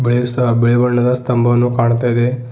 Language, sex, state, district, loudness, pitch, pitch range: Kannada, male, Karnataka, Bidar, -14 LUFS, 120 Hz, 120-125 Hz